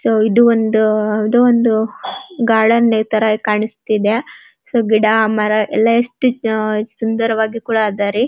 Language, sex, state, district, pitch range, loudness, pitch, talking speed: Kannada, female, Karnataka, Dharwad, 215-230 Hz, -15 LUFS, 220 Hz, 125 wpm